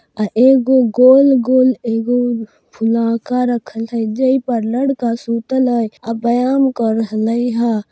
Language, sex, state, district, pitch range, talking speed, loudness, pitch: Hindi, female, Bihar, Darbhanga, 225-255 Hz, 135 wpm, -15 LUFS, 235 Hz